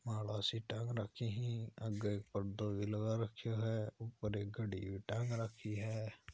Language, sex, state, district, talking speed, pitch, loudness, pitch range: Hindi, male, Rajasthan, Churu, 150 wpm, 110 Hz, -42 LUFS, 105-115 Hz